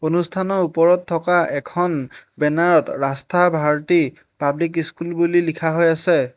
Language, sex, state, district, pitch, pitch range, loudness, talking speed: Assamese, male, Assam, Hailakandi, 165 Hz, 150-175 Hz, -19 LUFS, 130 wpm